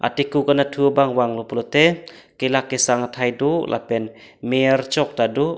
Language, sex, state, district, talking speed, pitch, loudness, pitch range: Karbi, male, Assam, Karbi Anglong, 150 wpm, 135 Hz, -19 LUFS, 120-145 Hz